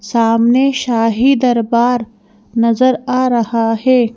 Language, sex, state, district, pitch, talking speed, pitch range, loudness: Hindi, female, Madhya Pradesh, Bhopal, 235 Hz, 100 wpm, 225-255 Hz, -14 LUFS